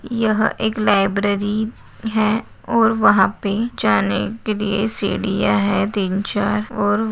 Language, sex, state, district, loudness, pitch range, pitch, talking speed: Hindi, female, Maharashtra, Nagpur, -19 LUFS, 200-220 Hz, 210 Hz, 125 wpm